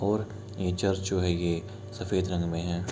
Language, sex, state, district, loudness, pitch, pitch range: Hindi, male, Bihar, Kishanganj, -30 LUFS, 95 Hz, 90-100 Hz